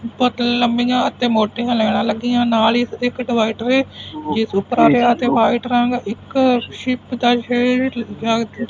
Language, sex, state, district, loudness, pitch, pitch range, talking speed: Punjabi, male, Punjab, Fazilka, -17 LUFS, 240 Hz, 225-245 Hz, 115 wpm